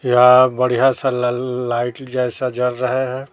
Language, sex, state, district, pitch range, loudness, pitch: Hindi, female, Chhattisgarh, Raipur, 125-130 Hz, -17 LUFS, 125 Hz